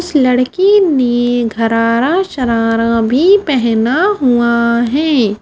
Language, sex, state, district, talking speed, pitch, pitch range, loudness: Hindi, female, Haryana, Charkhi Dadri, 110 wpm, 245 Hz, 230-305 Hz, -12 LUFS